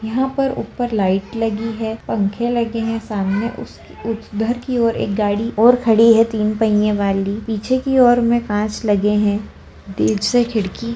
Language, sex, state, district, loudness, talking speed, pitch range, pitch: Kumaoni, female, Uttarakhand, Tehri Garhwal, -18 LUFS, 180 wpm, 205-235 Hz, 220 Hz